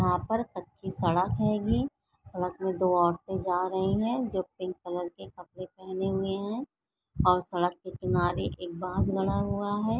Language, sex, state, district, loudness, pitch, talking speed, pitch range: Hindi, female, Bihar, Jamui, -30 LUFS, 185 Hz, 175 wpm, 180-195 Hz